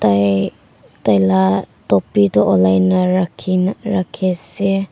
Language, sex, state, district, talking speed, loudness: Nagamese, female, Nagaland, Dimapur, 110 wpm, -16 LUFS